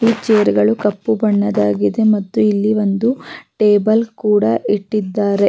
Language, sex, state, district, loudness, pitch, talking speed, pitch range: Kannada, female, Karnataka, Raichur, -15 LUFS, 210 Hz, 120 wpm, 200-220 Hz